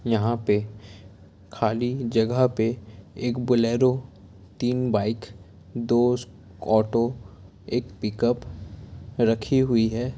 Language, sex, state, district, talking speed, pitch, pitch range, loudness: Hindi, male, Chhattisgarh, Korba, 100 wpm, 115 Hz, 100-120 Hz, -24 LUFS